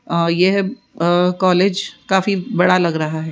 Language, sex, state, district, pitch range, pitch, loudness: Hindi, female, Rajasthan, Jaipur, 170-195 Hz, 180 Hz, -17 LUFS